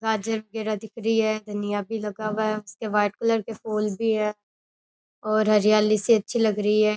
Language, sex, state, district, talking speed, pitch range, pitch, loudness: Rajasthani, female, Rajasthan, Churu, 205 wpm, 210-220 Hz, 215 Hz, -24 LUFS